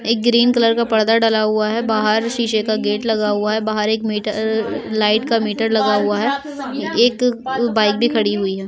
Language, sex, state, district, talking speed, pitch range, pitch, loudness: Hindi, female, Uttar Pradesh, Etah, 220 wpm, 215-235 Hz, 220 Hz, -17 LUFS